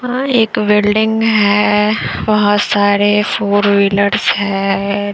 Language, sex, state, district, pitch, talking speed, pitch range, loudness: Hindi, female, Bihar, Patna, 205 Hz, 105 wpm, 205-215 Hz, -13 LUFS